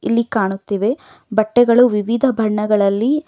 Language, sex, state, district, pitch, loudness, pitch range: Kannada, female, Karnataka, Bangalore, 225 Hz, -16 LUFS, 210-245 Hz